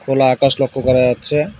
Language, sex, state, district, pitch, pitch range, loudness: Bengali, male, West Bengal, Alipurduar, 135 Hz, 130-140 Hz, -15 LUFS